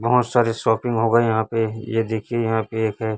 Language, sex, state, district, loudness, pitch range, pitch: Hindi, male, Chhattisgarh, Raipur, -21 LUFS, 110-115 Hz, 115 Hz